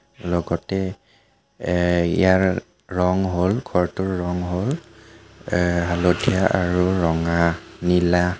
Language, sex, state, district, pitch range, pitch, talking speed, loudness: Assamese, male, Assam, Kamrup Metropolitan, 85-95 Hz, 90 Hz, 95 wpm, -21 LUFS